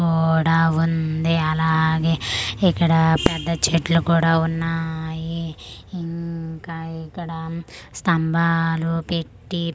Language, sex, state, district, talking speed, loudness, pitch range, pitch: Telugu, female, Andhra Pradesh, Manyam, 75 wpm, -21 LUFS, 160-165 Hz, 165 Hz